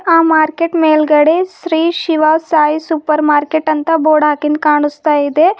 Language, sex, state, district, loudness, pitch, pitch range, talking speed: Kannada, female, Karnataka, Bidar, -12 LUFS, 310 Hz, 300-330 Hz, 140 wpm